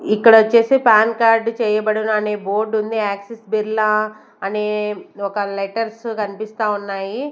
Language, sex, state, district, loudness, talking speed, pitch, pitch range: Telugu, female, Andhra Pradesh, Sri Satya Sai, -18 LUFS, 125 wpm, 215 Hz, 210-225 Hz